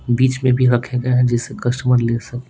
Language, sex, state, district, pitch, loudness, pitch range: Hindi, male, Bihar, Patna, 125 Hz, -17 LUFS, 120-125 Hz